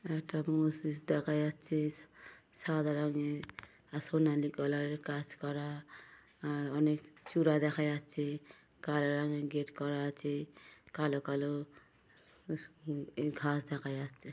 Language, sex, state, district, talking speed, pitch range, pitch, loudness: Bengali, male, West Bengal, Paschim Medinipur, 135 wpm, 145-155 Hz, 150 Hz, -36 LUFS